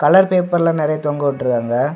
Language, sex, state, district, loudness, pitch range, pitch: Tamil, male, Tamil Nadu, Kanyakumari, -17 LUFS, 140-170 Hz, 150 Hz